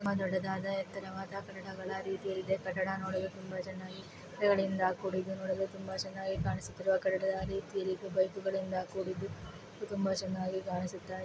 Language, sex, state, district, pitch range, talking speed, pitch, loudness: Kannada, female, Karnataka, Mysore, 185-195 Hz, 135 wpm, 190 Hz, -36 LUFS